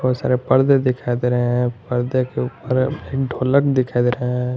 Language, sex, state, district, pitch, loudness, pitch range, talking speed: Hindi, male, Jharkhand, Garhwa, 125 Hz, -19 LUFS, 125-130 Hz, 195 wpm